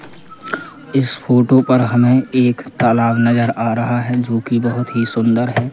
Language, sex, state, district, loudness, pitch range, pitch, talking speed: Hindi, male, Madhya Pradesh, Katni, -15 LUFS, 120-130 Hz, 120 Hz, 165 wpm